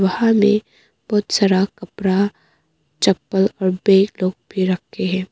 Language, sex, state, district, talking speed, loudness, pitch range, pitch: Hindi, female, Arunachal Pradesh, Papum Pare, 135 wpm, -18 LUFS, 185-210 Hz, 195 Hz